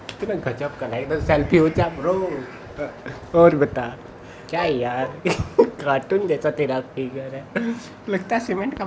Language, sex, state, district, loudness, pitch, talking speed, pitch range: Bhojpuri, male, Bihar, Saran, -22 LUFS, 155 Hz, 170 wpm, 135-190 Hz